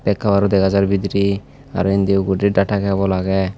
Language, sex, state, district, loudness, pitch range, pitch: Chakma, male, Tripura, Unakoti, -17 LUFS, 95-100 Hz, 100 Hz